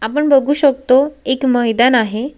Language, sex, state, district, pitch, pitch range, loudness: Marathi, female, Maharashtra, Solapur, 260 Hz, 245-280 Hz, -14 LUFS